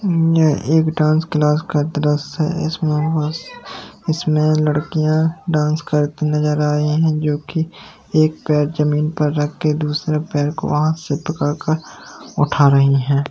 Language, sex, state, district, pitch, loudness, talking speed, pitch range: Hindi, male, Uttar Pradesh, Jalaun, 155 Hz, -18 LUFS, 150 wpm, 150-160 Hz